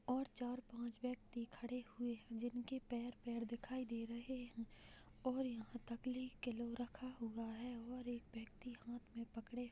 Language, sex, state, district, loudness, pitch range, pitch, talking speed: Hindi, female, Uttar Pradesh, Hamirpur, -48 LUFS, 235-250 Hz, 240 Hz, 160 wpm